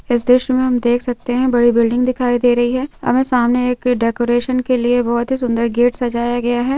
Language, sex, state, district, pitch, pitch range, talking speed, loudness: Hindi, female, West Bengal, North 24 Parganas, 245 Hz, 240-250 Hz, 230 wpm, -16 LUFS